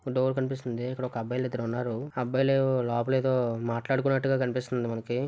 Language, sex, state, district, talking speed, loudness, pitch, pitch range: Telugu, male, Andhra Pradesh, Visakhapatnam, 160 wpm, -28 LUFS, 125 Hz, 120-130 Hz